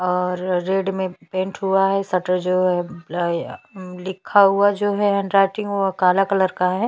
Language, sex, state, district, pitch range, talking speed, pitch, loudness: Hindi, female, Chhattisgarh, Bastar, 180-195 Hz, 185 wpm, 190 Hz, -20 LUFS